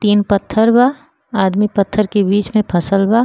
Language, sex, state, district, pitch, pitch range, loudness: Bhojpuri, female, Uttar Pradesh, Gorakhpur, 210 Hz, 200-225 Hz, -15 LUFS